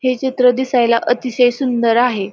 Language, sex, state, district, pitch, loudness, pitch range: Marathi, female, Maharashtra, Pune, 245 Hz, -15 LUFS, 235-255 Hz